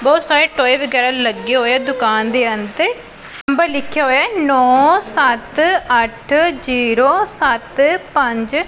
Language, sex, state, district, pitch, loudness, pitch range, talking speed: Punjabi, female, Punjab, Pathankot, 275 Hz, -14 LUFS, 245-305 Hz, 140 wpm